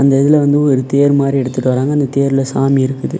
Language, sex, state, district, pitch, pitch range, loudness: Tamil, male, Tamil Nadu, Namakkal, 135 Hz, 135-145 Hz, -13 LUFS